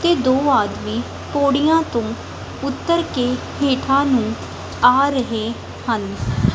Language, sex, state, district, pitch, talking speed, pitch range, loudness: Punjabi, female, Punjab, Kapurthala, 275 Hz, 110 wpm, 245-290 Hz, -19 LUFS